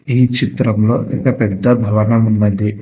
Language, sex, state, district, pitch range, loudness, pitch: Telugu, male, Telangana, Hyderabad, 105-125 Hz, -14 LUFS, 115 Hz